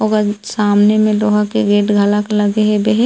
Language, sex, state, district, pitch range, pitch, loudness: Chhattisgarhi, female, Chhattisgarh, Rajnandgaon, 210-215 Hz, 210 Hz, -14 LUFS